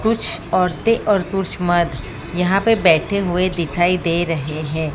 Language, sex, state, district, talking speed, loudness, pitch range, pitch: Hindi, female, Maharashtra, Mumbai Suburban, 160 wpm, -18 LUFS, 165-195 Hz, 175 Hz